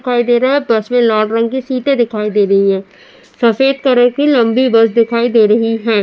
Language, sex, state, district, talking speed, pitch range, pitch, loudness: Hindi, female, Uttar Pradesh, Jalaun, 230 wpm, 220-255 Hz, 235 Hz, -12 LUFS